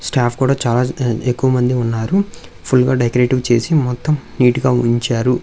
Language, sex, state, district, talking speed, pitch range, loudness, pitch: Telugu, male, Andhra Pradesh, Visakhapatnam, 145 wpm, 120-130 Hz, -16 LUFS, 125 Hz